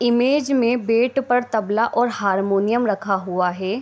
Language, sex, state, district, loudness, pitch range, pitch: Hindi, female, Bihar, Begusarai, -20 LUFS, 195-245 Hz, 230 Hz